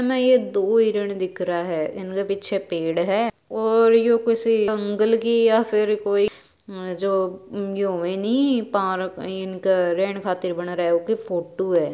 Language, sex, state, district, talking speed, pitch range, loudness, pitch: Marwari, female, Rajasthan, Churu, 165 wpm, 185-225 Hz, -22 LUFS, 195 Hz